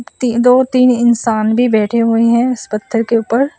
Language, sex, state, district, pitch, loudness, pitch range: Hindi, female, Assam, Sonitpur, 235 Hz, -13 LUFS, 230-250 Hz